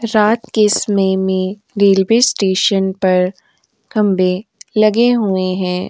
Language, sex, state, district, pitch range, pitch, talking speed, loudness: Hindi, female, Uttar Pradesh, Jyotiba Phule Nagar, 190-215 Hz, 200 Hz, 110 wpm, -15 LUFS